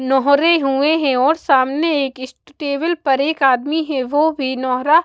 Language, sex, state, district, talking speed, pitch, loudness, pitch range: Hindi, female, Bihar, West Champaran, 165 wpm, 280 Hz, -16 LUFS, 265-310 Hz